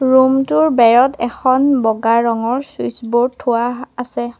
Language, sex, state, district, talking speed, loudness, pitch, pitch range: Assamese, female, Assam, Sonitpur, 135 wpm, -15 LUFS, 245 Hz, 235-260 Hz